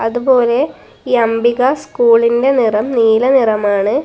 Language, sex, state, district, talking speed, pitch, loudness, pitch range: Malayalam, female, Kerala, Kasaragod, 105 wpm, 235 Hz, -13 LUFS, 225-255 Hz